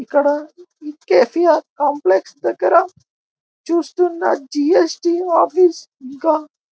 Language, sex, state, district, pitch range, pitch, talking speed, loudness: Telugu, male, Telangana, Karimnagar, 290-345 Hz, 320 Hz, 70 wpm, -17 LUFS